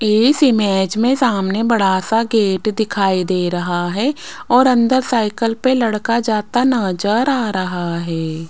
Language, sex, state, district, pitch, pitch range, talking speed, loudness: Hindi, female, Rajasthan, Jaipur, 215 Hz, 190-245 Hz, 150 wpm, -16 LUFS